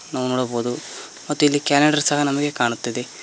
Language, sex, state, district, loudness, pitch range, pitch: Kannada, male, Karnataka, Koppal, -20 LUFS, 125-145 Hz, 140 Hz